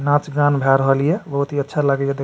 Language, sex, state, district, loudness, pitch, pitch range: Maithili, male, Bihar, Supaul, -18 LUFS, 140 Hz, 140-145 Hz